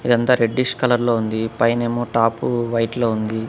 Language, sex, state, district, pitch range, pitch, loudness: Telugu, male, Andhra Pradesh, Annamaya, 115-120 Hz, 115 Hz, -19 LUFS